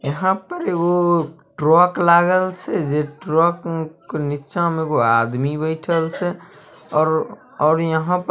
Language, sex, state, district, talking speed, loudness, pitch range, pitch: Maithili, male, Bihar, Samastipur, 145 wpm, -19 LUFS, 150-175 Hz, 165 Hz